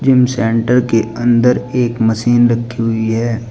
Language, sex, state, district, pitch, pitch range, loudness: Hindi, male, Uttar Pradesh, Shamli, 120 Hz, 115-125 Hz, -14 LUFS